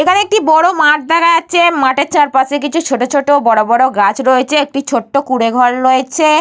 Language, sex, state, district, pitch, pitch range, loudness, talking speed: Bengali, female, West Bengal, Paschim Medinipur, 280 Hz, 260-315 Hz, -11 LUFS, 180 wpm